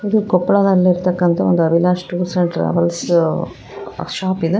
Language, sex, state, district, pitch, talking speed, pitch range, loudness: Kannada, female, Karnataka, Koppal, 180 Hz, 115 wpm, 170-185 Hz, -16 LUFS